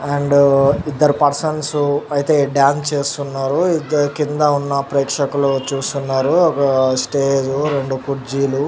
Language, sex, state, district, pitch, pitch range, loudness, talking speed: Telugu, male, Telangana, Nalgonda, 140 Hz, 140-145 Hz, -17 LUFS, 110 wpm